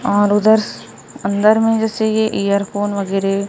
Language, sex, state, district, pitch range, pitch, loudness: Hindi, female, Maharashtra, Gondia, 200-220 Hz, 205 Hz, -16 LUFS